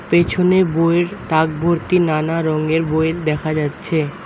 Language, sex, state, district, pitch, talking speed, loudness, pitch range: Bengali, male, West Bengal, Alipurduar, 160 Hz, 115 wpm, -17 LUFS, 155-170 Hz